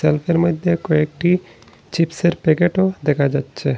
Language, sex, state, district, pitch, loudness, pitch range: Bengali, male, Assam, Hailakandi, 165 Hz, -18 LUFS, 150-175 Hz